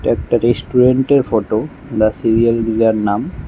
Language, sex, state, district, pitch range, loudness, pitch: Bengali, male, Tripura, West Tripura, 110-125 Hz, -15 LUFS, 115 Hz